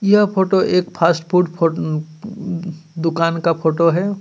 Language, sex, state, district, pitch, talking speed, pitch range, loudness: Hindi, male, Jharkhand, Ranchi, 170 Hz, 155 wpm, 165-190 Hz, -17 LUFS